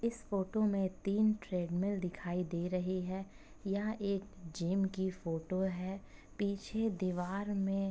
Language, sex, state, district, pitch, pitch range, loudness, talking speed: Hindi, female, Jharkhand, Jamtara, 190 Hz, 180-200 Hz, -37 LUFS, 150 wpm